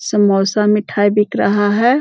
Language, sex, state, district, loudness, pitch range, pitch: Hindi, female, Bihar, Jahanabad, -14 LUFS, 205-210 Hz, 210 Hz